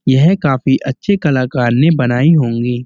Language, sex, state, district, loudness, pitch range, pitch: Hindi, male, Uttar Pradesh, Muzaffarnagar, -13 LUFS, 125-150 Hz, 135 Hz